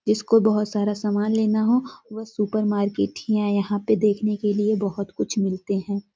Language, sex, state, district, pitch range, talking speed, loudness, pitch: Hindi, female, Chhattisgarh, Sarguja, 200-215 Hz, 195 wpm, -22 LUFS, 210 Hz